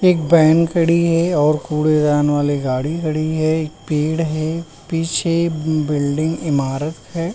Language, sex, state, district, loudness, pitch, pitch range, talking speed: Hindi, male, Uttar Pradesh, Varanasi, -18 LUFS, 155 Hz, 150-165 Hz, 130 wpm